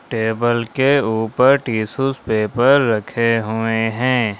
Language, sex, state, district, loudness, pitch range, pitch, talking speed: Hindi, male, Jharkhand, Ranchi, -17 LUFS, 110-130 Hz, 115 Hz, 110 wpm